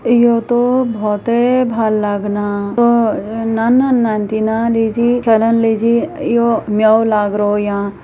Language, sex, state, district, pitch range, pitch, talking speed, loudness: Hindi, female, Uttarakhand, Uttarkashi, 215-235 Hz, 225 Hz, 125 wpm, -14 LUFS